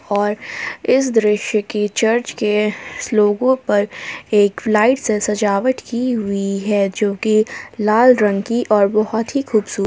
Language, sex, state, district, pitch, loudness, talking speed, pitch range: Hindi, female, Jharkhand, Palamu, 215 Hz, -17 LUFS, 145 wpm, 205-230 Hz